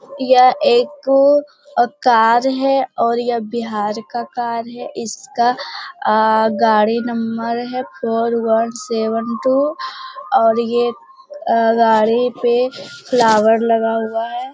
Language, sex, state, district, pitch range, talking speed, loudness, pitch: Hindi, female, Bihar, Jamui, 225-260 Hz, 105 wpm, -16 LUFS, 235 Hz